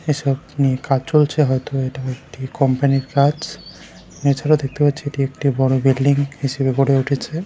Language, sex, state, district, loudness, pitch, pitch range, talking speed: Bengali, male, West Bengal, Jalpaiguri, -18 LUFS, 140 Hz, 135-145 Hz, 155 wpm